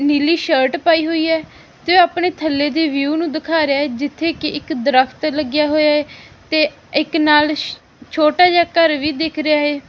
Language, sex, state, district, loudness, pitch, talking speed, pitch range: Punjabi, female, Punjab, Fazilka, -16 LUFS, 305 Hz, 180 wpm, 290-325 Hz